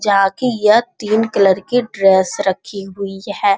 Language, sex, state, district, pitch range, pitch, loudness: Hindi, male, Bihar, Jamui, 195-220 Hz, 200 Hz, -16 LUFS